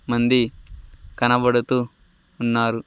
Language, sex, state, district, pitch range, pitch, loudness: Telugu, male, Andhra Pradesh, Sri Satya Sai, 95-120 Hz, 120 Hz, -20 LUFS